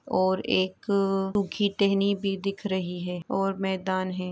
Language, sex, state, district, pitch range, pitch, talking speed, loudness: Hindi, female, Uttar Pradesh, Etah, 185-195 Hz, 195 Hz, 280 wpm, -27 LUFS